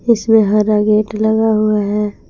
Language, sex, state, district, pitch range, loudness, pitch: Hindi, female, Jharkhand, Palamu, 210-220 Hz, -14 LUFS, 215 Hz